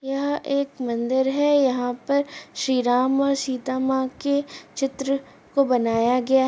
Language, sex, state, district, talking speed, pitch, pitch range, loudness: Hindi, female, Uttar Pradesh, Muzaffarnagar, 155 wpm, 265 Hz, 255-280 Hz, -23 LUFS